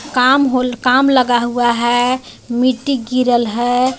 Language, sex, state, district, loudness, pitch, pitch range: Hindi, female, Jharkhand, Garhwa, -15 LUFS, 250 Hz, 240-255 Hz